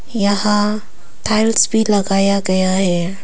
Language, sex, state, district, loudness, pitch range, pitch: Hindi, female, Arunachal Pradesh, Papum Pare, -15 LUFS, 195-215 Hz, 200 Hz